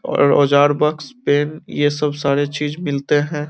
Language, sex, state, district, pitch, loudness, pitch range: Hindi, male, Bihar, Samastipur, 145 Hz, -18 LUFS, 145-150 Hz